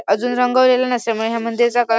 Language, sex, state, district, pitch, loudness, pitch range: Marathi, female, Maharashtra, Sindhudurg, 240 Hz, -17 LUFS, 230-250 Hz